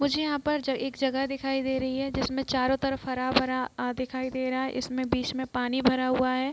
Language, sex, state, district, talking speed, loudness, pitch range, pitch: Hindi, female, Bihar, East Champaran, 230 wpm, -28 LUFS, 255-270 Hz, 260 Hz